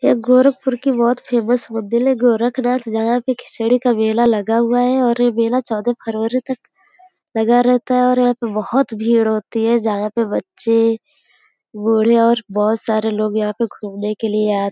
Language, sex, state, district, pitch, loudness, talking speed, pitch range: Hindi, female, Uttar Pradesh, Gorakhpur, 235 Hz, -17 LUFS, 190 wpm, 220-250 Hz